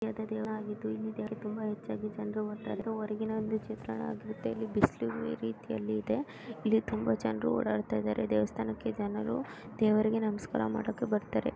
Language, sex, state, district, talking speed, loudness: Kannada, female, Karnataka, Dakshina Kannada, 140 wpm, -34 LUFS